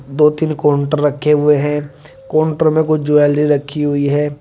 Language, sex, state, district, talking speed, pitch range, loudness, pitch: Hindi, male, Uttar Pradesh, Shamli, 175 wpm, 145-150 Hz, -15 LUFS, 150 Hz